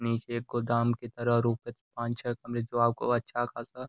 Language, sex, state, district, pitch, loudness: Hindi, male, Uttar Pradesh, Gorakhpur, 120 Hz, -31 LUFS